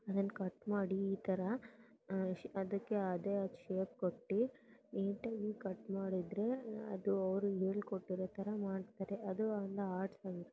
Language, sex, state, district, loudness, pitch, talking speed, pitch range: Kannada, female, Karnataka, Dakshina Kannada, -41 LUFS, 195 Hz, 125 wpm, 190-210 Hz